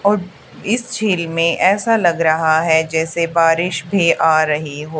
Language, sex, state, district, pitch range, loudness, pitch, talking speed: Hindi, female, Haryana, Charkhi Dadri, 160-190 Hz, -16 LUFS, 165 Hz, 170 wpm